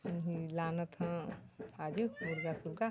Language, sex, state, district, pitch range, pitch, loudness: Chhattisgarhi, female, Chhattisgarh, Balrampur, 165-210 Hz, 170 Hz, -40 LUFS